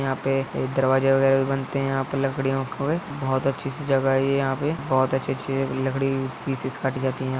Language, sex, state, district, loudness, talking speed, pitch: Hindi, male, Uttar Pradesh, Hamirpur, -23 LUFS, 245 wpm, 135 Hz